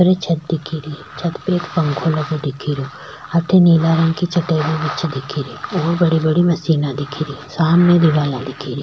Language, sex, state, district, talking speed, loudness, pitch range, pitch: Rajasthani, female, Rajasthan, Churu, 195 wpm, -17 LUFS, 145-170 Hz, 160 Hz